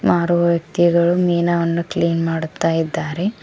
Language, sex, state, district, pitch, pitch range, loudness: Kannada, female, Karnataka, Koppal, 170 Hz, 165-175 Hz, -18 LUFS